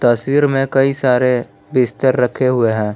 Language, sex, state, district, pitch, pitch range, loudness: Hindi, male, Jharkhand, Palamu, 125 Hz, 120-135 Hz, -15 LUFS